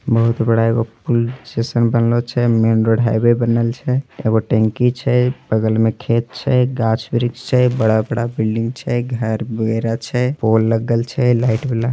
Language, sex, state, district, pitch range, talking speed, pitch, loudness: Angika, male, Bihar, Begusarai, 115-125 Hz, 175 wpm, 115 Hz, -17 LUFS